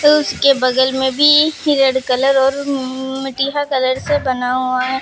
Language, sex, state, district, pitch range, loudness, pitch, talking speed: Hindi, female, Uttar Pradesh, Lucknow, 260-285 Hz, -15 LUFS, 265 Hz, 165 wpm